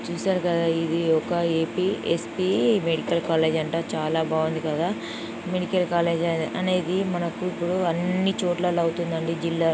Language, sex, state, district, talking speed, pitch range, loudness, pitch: Telugu, female, Andhra Pradesh, Chittoor, 130 wpm, 165-180 Hz, -24 LUFS, 170 Hz